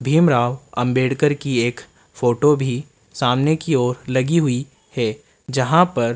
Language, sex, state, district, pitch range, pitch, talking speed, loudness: Hindi, male, Rajasthan, Jaipur, 120-145 Hz, 130 Hz, 145 wpm, -19 LUFS